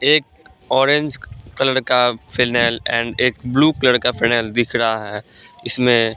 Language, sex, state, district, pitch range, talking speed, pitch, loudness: Hindi, male, Bihar, Katihar, 115-130 Hz, 155 wpm, 120 Hz, -17 LUFS